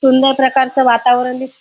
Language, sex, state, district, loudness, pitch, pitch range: Marathi, female, Maharashtra, Dhule, -13 LUFS, 260 Hz, 250-265 Hz